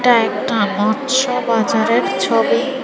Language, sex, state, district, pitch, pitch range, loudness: Bengali, female, Tripura, West Tripura, 235 Hz, 215-255 Hz, -16 LUFS